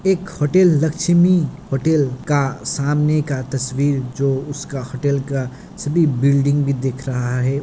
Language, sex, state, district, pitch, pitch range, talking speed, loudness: Hindi, male, Bihar, Kishanganj, 140 Hz, 135-155 Hz, 140 wpm, -18 LUFS